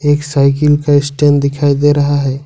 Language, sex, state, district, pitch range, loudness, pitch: Hindi, male, Jharkhand, Ranchi, 140-145 Hz, -12 LUFS, 145 Hz